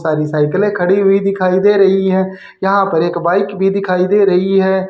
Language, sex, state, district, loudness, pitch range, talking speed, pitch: Hindi, male, Haryana, Jhajjar, -13 LUFS, 180-195 Hz, 210 wpm, 190 Hz